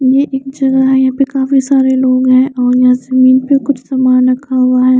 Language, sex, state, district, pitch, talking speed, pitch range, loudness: Hindi, female, Chandigarh, Chandigarh, 260 Hz, 230 wpm, 255-270 Hz, -11 LUFS